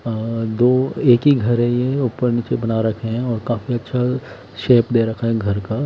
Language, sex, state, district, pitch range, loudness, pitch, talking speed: Hindi, male, Himachal Pradesh, Shimla, 115-125 Hz, -18 LUFS, 120 Hz, 215 wpm